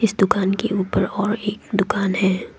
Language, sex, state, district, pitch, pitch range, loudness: Hindi, female, Assam, Kamrup Metropolitan, 200 Hz, 195-210 Hz, -21 LUFS